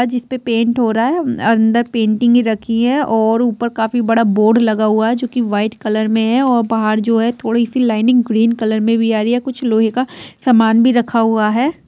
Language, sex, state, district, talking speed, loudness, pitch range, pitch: Hindi, female, Bihar, Sitamarhi, 235 wpm, -15 LUFS, 220-245 Hz, 230 Hz